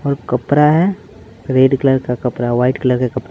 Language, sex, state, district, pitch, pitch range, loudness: Hindi, male, Bihar, Patna, 130 Hz, 125-140 Hz, -15 LUFS